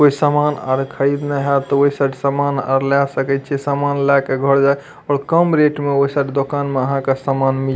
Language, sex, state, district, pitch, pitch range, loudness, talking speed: Maithili, male, Bihar, Madhepura, 140 Hz, 135-145 Hz, -17 LUFS, 230 wpm